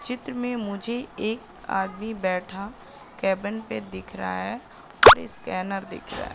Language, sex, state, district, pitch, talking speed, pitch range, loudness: Hindi, female, Madhya Pradesh, Katni, 200 Hz, 140 wpm, 185-235 Hz, -24 LUFS